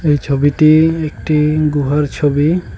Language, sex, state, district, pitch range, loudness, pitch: Bengali, male, West Bengal, Cooch Behar, 145-155 Hz, -14 LUFS, 150 Hz